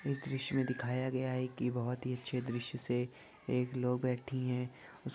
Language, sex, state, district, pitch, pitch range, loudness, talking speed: Hindi, male, Uttar Pradesh, Jalaun, 125 Hz, 125-130 Hz, -37 LUFS, 210 wpm